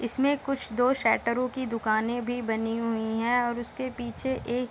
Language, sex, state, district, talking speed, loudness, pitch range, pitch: Hindi, female, Bihar, Sitamarhi, 190 wpm, -28 LUFS, 230-255 Hz, 240 Hz